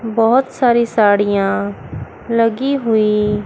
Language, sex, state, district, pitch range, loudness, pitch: Hindi, female, Chandigarh, Chandigarh, 205-235 Hz, -15 LUFS, 225 Hz